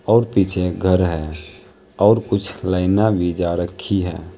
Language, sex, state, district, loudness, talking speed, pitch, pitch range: Hindi, male, Uttar Pradesh, Saharanpur, -18 LUFS, 165 wpm, 95 Hz, 90-100 Hz